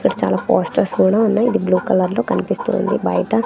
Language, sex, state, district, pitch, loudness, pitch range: Telugu, female, Andhra Pradesh, Manyam, 220 Hz, -17 LUFS, 185-225 Hz